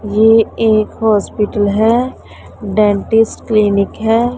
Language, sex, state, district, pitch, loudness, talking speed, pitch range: Hindi, male, Punjab, Pathankot, 215 Hz, -13 LUFS, 95 wpm, 210-225 Hz